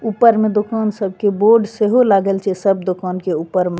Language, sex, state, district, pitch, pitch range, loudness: Maithili, female, Bihar, Begusarai, 200 Hz, 185-220 Hz, -16 LUFS